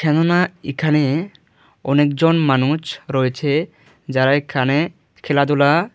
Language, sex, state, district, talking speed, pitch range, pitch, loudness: Bengali, male, Tripura, Dhalai, 90 wpm, 140-160 Hz, 145 Hz, -18 LUFS